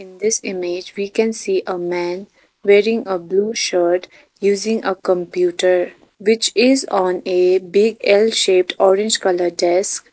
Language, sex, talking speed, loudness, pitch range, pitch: English, female, 150 wpm, -17 LUFS, 180-210 Hz, 190 Hz